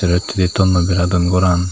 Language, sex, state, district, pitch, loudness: Chakma, male, Tripura, Dhalai, 90 Hz, -15 LUFS